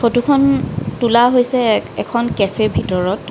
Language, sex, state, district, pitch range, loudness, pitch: Assamese, female, Assam, Kamrup Metropolitan, 215-245 Hz, -15 LUFS, 235 Hz